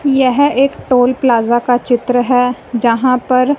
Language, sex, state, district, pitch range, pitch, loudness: Hindi, female, Punjab, Fazilka, 245-260 Hz, 250 Hz, -13 LUFS